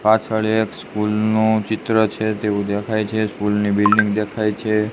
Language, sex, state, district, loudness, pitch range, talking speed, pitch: Gujarati, male, Gujarat, Gandhinagar, -19 LUFS, 105-110 Hz, 170 wpm, 110 Hz